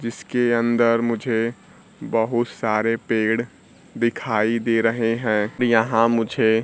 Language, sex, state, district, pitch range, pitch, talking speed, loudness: Hindi, male, Bihar, Kaimur, 115-120 Hz, 115 Hz, 110 wpm, -21 LUFS